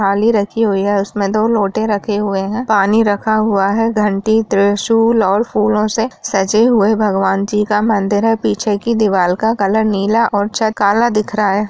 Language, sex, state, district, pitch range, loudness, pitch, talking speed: Hindi, female, Bihar, Jamui, 200-220 Hz, -14 LUFS, 210 Hz, 195 wpm